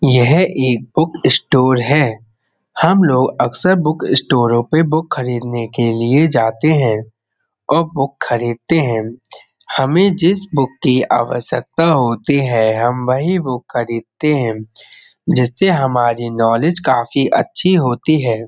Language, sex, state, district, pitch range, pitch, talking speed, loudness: Hindi, male, Uttar Pradesh, Budaun, 120-155 Hz, 130 Hz, 130 wpm, -15 LUFS